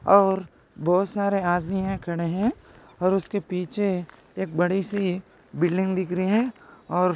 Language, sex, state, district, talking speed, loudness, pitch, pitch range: Hindi, male, Maharashtra, Sindhudurg, 140 wpm, -25 LUFS, 185 Hz, 175-195 Hz